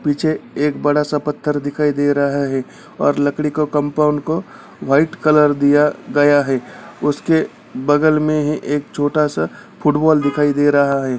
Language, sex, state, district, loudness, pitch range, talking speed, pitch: Hindi, male, Bihar, Gaya, -17 LUFS, 145-150 Hz, 165 wpm, 145 Hz